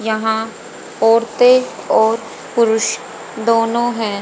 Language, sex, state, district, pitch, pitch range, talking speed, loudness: Hindi, female, Haryana, Rohtak, 225 Hz, 220-235 Hz, 85 wpm, -16 LUFS